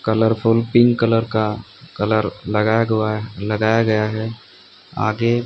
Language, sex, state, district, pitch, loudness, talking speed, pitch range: Hindi, male, Odisha, Sambalpur, 110 Hz, -18 LUFS, 120 wpm, 105-115 Hz